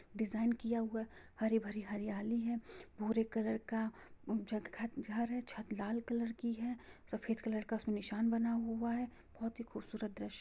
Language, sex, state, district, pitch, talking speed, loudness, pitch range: Hindi, female, Jharkhand, Jamtara, 225 Hz, 155 wpm, -40 LUFS, 215-230 Hz